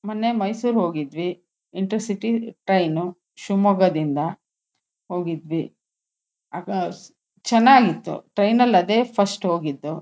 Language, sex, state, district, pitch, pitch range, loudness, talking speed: Kannada, female, Karnataka, Shimoga, 195 Hz, 170-225 Hz, -21 LUFS, 90 wpm